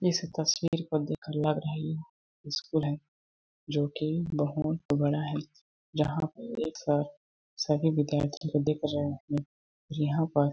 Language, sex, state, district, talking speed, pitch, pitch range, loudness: Hindi, male, Chhattisgarh, Balrampur, 150 wpm, 150 Hz, 145-160 Hz, -31 LUFS